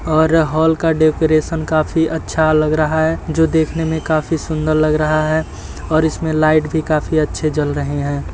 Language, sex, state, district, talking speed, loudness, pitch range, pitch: Hindi, male, Uttar Pradesh, Etah, 185 wpm, -16 LUFS, 155-160 Hz, 155 Hz